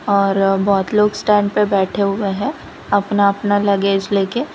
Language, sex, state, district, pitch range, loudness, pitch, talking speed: Hindi, female, Gujarat, Valsad, 195-210 Hz, -16 LUFS, 200 Hz, 185 wpm